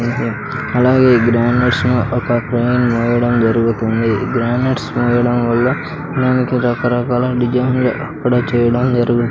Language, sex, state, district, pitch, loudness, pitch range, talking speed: Telugu, male, Andhra Pradesh, Sri Satya Sai, 120 Hz, -15 LUFS, 120-125 Hz, 120 wpm